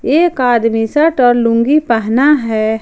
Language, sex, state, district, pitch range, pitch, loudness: Hindi, female, Jharkhand, Ranchi, 225-295 Hz, 245 Hz, -12 LUFS